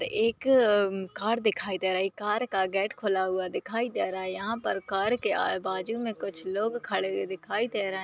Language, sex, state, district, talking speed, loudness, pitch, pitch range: Hindi, female, Maharashtra, Aurangabad, 230 wpm, -29 LUFS, 200 Hz, 190-230 Hz